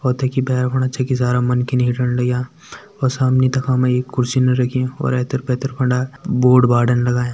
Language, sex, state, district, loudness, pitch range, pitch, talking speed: Garhwali, male, Uttarakhand, Tehri Garhwal, -17 LUFS, 125-130 Hz, 125 Hz, 190 wpm